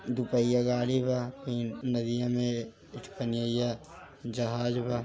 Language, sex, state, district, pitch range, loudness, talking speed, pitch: Hindi, male, Uttar Pradesh, Gorakhpur, 120-125 Hz, -31 LUFS, 120 wpm, 120 Hz